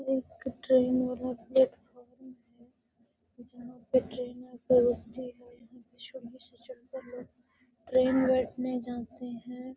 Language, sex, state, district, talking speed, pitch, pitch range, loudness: Hindi, female, Bihar, Gaya, 110 wpm, 250 Hz, 240-255 Hz, -29 LUFS